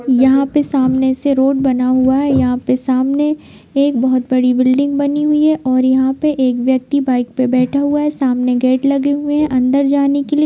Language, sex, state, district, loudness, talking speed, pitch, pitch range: Hindi, female, Bihar, Jamui, -14 LUFS, 210 wpm, 265 Hz, 255-285 Hz